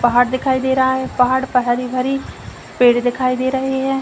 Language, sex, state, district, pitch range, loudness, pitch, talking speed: Hindi, female, Uttar Pradesh, Deoria, 250-265 Hz, -17 LUFS, 255 Hz, 210 wpm